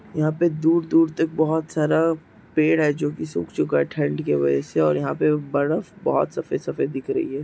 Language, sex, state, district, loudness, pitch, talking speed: Hindi, male, Chhattisgarh, Raigarh, -22 LUFS, 155 Hz, 215 wpm